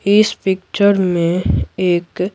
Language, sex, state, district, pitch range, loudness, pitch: Hindi, female, Bihar, Patna, 175-200 Hz, -16 LUFS, 190 Hz